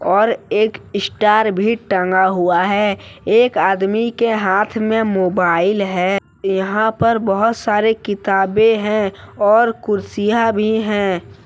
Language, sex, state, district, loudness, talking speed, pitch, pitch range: Hindi, male, Jharkhand, Deoghar, -16 LUFS, 125 wpm, 210 Hz, 195-220 Hz